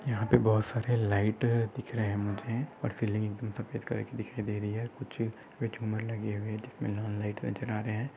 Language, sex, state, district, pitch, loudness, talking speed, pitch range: Hindi, male, Maharashtra, Nagpur, 110 Hz, -33 LUFS, 215 wpm, 105-120 Hz